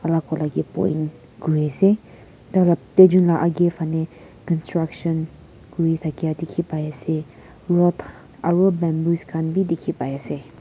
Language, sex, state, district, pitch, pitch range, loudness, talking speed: Nagamese, female, Nagaland, Kohima, 165 Hz, 155-170 Hz, -21 LUFS, 125 wpm